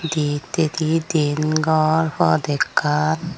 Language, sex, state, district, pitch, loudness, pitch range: Chakma, female, Tripura, Dhalai, 155 Hz, -20 LUFS, 150-160 Hz